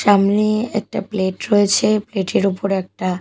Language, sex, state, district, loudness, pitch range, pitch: Bengali, female, Odisha, Malkangiri, -18 LUFS, 195-215 Hz, 200 Hz